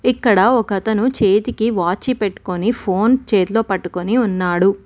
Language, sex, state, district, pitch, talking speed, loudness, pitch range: Telugu, female, Telangana, Mahabubabad, 205 Hz, 110 wpm, -17 LUFS, 190-235 Hz